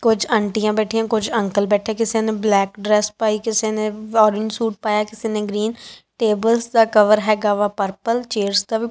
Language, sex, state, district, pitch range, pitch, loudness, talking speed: Punjabi, female, Punjab, Kapurthala, 210-225 Hz, 215 Hz, -19 LUFS, 190 wpm